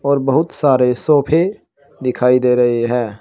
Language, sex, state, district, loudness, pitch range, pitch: Hindi, male, Uttar Pradesh, Shamli, -15 LUFS, 125-145 Hz, 125 Hz